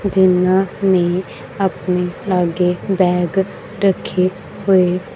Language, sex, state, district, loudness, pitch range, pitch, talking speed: Punjabi, female, Punjab, Kapurthala, -17 LUFS, 180-190 Hz, 185 Hz, 80 wpm